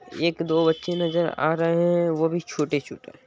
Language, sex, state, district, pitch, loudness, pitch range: Hindi, male, Bihar, Madhepura, 165 Hz, -23 LUFS, 160-170 Hz